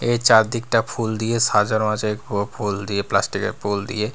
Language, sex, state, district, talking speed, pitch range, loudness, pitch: Bengali, male, Bihar, Katihar, 175 wpm, 105-115 Hz, -20 LUFS, 110 Hz